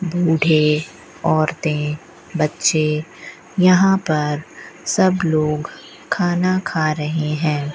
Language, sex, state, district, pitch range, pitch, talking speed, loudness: Hindi, female, Rajasthan, Bikaner, 150-175 Hz, 155 Hz, 85 wpm, -18 LUFS